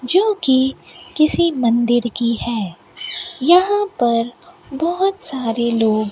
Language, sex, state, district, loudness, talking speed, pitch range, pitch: Hindi, female, Rajasthan, Bikaner, -17 LUFS, 110 wpm, 235-345 Hz, 260 Hz